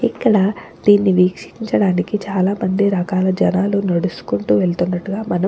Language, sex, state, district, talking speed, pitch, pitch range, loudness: Telugu, female, Andhra Pradesh, Chittoor, 110 wpm, 190 Hz, 180-200 Hz, -17 LUFS